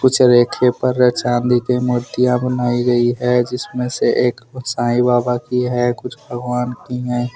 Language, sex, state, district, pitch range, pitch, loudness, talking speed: Hindi, male, Jharkhand, Deoghar, 120-125 Hz, 125 Hz, -17 LUFS, 180 wpm